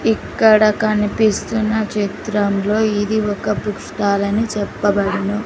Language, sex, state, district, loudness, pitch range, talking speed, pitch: Telugu, female, Andhra Pradesh, Sri Satya Sai, -17 LUFS, 205-220 Hz, 100 wpm, 210 Hz